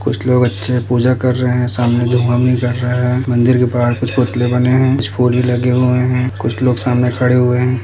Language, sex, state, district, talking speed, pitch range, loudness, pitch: Hindi, male, Maharashtra, Dhule, 250 wpm, 120-125 Hz, -14 LUFS, 125 Hz